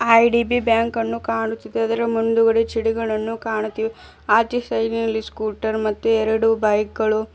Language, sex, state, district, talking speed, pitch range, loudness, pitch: Kannada, female, Karnataka, Bidar, 120 wpm, 220-230 Hz, -20 LUFS, 225 Hz